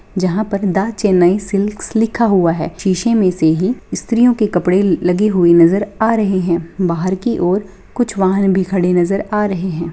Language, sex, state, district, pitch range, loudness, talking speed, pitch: Hindi, female, Bihar, Samastipur, 180-210 Hz, -15 LUFS, 195 wpm, 190 Hz